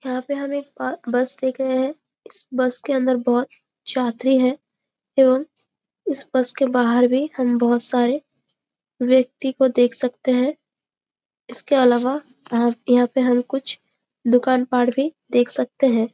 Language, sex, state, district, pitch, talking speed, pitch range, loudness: Hindi, female, Chhattisgarh, Bastar, 255 Hz, 155 wpm, 245-270 Hz, -20 LUFS